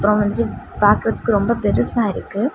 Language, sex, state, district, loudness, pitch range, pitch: Tamil, female, Tamil Nadu, Kanyakumari, -18 LUFS, 205-235 Hz, 210 Hz